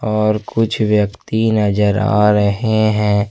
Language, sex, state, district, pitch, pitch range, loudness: Hindi, male, Jharkhand, Ranchi, 105 Hz, 105-110 Hz, -15 LUFS